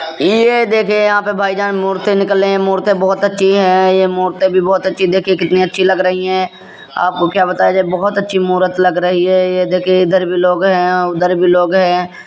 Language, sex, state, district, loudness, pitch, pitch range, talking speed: Hindi, male, Uttar Pradesh, Jyotiba Phule Nagar, -13 LUFS, 185 Hz, 180-195 Hz, 225 wpm